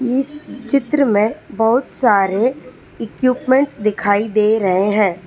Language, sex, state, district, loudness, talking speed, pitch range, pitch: Hindi, female, Telangana, Hyderabad, -16 LUFS, 115 wpm, 205-265 Hz, 225 Hz